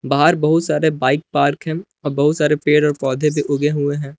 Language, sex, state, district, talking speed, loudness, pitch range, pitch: Hindi, male, Jharkhand, Palamu, 230 wpm, -17 LUFS, 145-155 Hz, 150 Hz